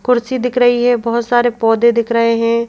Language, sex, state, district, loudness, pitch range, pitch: Hindi, female, Madhya Pradesh, Bhopal, -14 LUFS, 230-245 Hz, 235 Hz